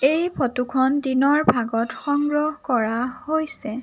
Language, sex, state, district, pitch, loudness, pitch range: Assamese, female, Assam, Sonitpur, 265 Hz, -21 LUFS, 245-300 Hz